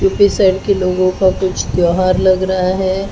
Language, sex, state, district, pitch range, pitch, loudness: Hindi, female, Maharashtra, Mumbai Suburban, 185-190 Hz, 185 Hz, -14 LUFS